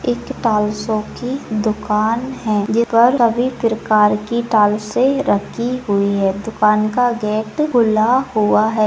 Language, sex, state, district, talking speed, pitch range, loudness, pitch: Hindi, female, Uttarakhand, Uttarkashi, 120 wpm, 210-240 Hz, -17 LUFS, 220 Hz